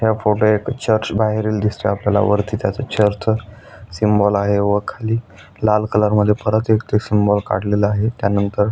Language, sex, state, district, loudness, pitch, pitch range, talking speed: Marathi, male, Maharashtra, Aurangabad, -18 LUFS, 105 Hz, 105-110 Hz, 170 wpm